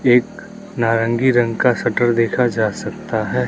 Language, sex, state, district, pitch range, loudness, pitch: Hindi, male, Arunachal Pradesh, Lower Dibang Valley, 115-130 Hz, -17 LUFS, 120 Hz